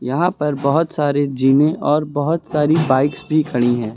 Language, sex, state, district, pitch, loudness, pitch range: Hindi, male, Uttar Pradesh, Lucknow, 145 Hz, -17 LUFS, 135-155 Hz